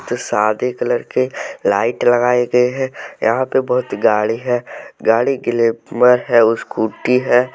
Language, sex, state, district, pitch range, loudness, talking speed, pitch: Hindi, male, Jharkhand, Deoghar, 115-125 Hz, -16 LUFS, 135 wpm, 120 Hz